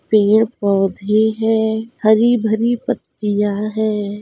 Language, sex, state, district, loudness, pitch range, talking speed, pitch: Hindi, female, Uttar Pradesh, Budaun, -17 LUFS, 205-225 Hz, 100 wpm, 215 Hz